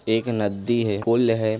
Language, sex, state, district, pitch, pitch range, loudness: Hindi, male, Chhattisgarh, Balrampur, 110 Hz, 110-115 Hz, -22 LUFS